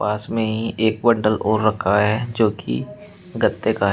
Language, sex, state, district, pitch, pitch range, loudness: Hindi, male, Uttar Pradesh, Shamli, 110 Hz, 105-110 Hz, -20 LUFS